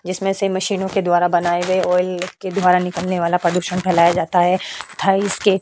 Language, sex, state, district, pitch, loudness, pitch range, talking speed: Hindi, female, Goa, North and South Goa, 180 Hz, -18 LUFS, 175-190 Hz, 200 wpm